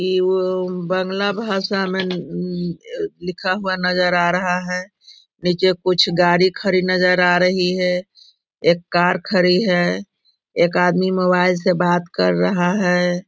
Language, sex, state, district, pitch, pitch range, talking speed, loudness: Hindi, female, Bihar, Begusarai, 180 Hz, 180-185 Hz, 140 wpm, -18 LUFS